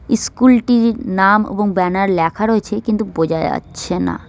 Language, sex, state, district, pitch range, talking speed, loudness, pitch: Bengali, female, West Bengal, Cooch Behar, 180-225 Hz, 140 wpm, -16 LUFS, 205 Hz